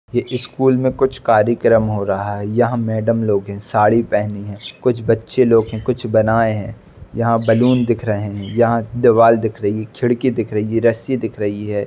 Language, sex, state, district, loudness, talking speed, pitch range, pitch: Hindi, male, Uttar Pradesh, Budaun, -17 LUFS, 200 wpm, 105-120 Hz, 115 Hz